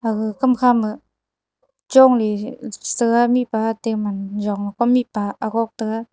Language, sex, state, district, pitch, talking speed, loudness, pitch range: Wancho, female, Arunachal Pradesh, Longding, 225 Hz, 135 wpm, -19 LUFS, 215-245 Hz